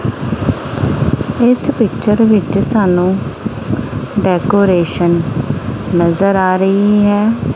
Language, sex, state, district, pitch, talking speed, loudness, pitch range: Punjabi, female, Punjab, Kapurthala, 195 Hz, 70 wpm, -14 LUFS, 175-210 Hz